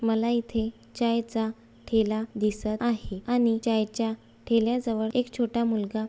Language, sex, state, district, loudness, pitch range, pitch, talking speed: Marathi, female, Maharashtra, Sindhudurg, -27 LUFS, 220-235 Hz, 225 Hz, 145 wpm